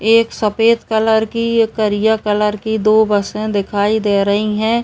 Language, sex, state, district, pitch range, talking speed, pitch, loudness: Hindi, male, Uttar Pradesh, Etah, 210-225 Hz, 175 wpm, 215 Hz, -15 LUFS